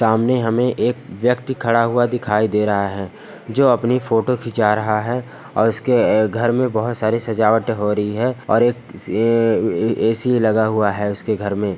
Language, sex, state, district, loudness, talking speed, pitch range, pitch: Hindi, male, Bihar, Jamui, -18 LUFS, 195 wpm, 110-120 Hz, 115 Hz